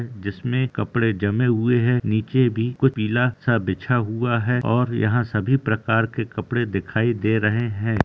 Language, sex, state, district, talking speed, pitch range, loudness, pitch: Hindi, male, Bihar, Gaya, 170 wpm, 110-125 Hz, -21 LUFS, 115 Hz